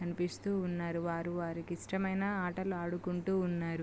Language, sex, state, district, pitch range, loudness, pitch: Telugu, female, Andhra Pradesh, Guntur, 170-190 Hz, -36 LUFS, 175 Hz